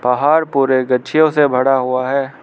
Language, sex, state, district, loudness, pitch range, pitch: Hindi, male, Arunachal Pradesh, Lower Dibang Valley, -15 LUFS, 130-145 Hz, 135 Hz